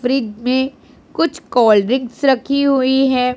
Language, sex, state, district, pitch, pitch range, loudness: Hindi, female, Punjab, Pathankot, 260 Hz, 250-270 Hz, -16 LUFS